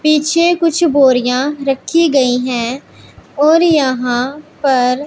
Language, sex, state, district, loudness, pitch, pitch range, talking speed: Hindi, female, Punjab, Pathankot, -13 LUFS, 275 Hz, 255-310 Hz, 105 wpm